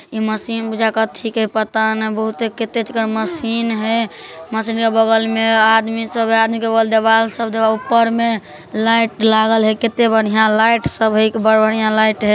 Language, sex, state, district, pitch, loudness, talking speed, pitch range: Maithili, male, Bihar, Darbhanga, 225 Hz, -15 LUFS, 155 wpm, 220-225 Hz